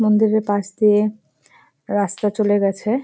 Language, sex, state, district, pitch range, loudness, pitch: Bengali, female, West Bengal, Jalpaiguri, 205-215 Hz, -19 LUFS, 210 Hz